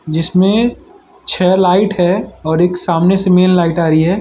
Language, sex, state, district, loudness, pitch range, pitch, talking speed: Hindi, male, Gujarat, Valsad, -13 LUFS, 170-195 Hz, 180 Hz, 185 wpm